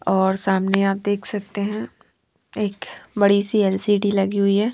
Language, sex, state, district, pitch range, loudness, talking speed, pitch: Hindi, female, Punjab, Fazilka, 195-205 Hz, -21 LUFS, 165 wpm, 200 Hz